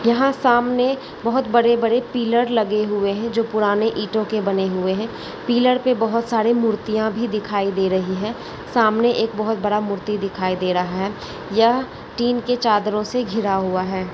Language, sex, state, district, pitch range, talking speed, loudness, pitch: Hindi, female, Chhattisgarh, Bilaspur, 205-235 Hz, 180 wpm, -20 LUFS, 220 Hz